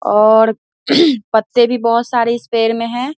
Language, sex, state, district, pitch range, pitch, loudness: Hindi, female, Bihar, Vaishali, 225-245 Hz, 230 Hz, -14 LUFS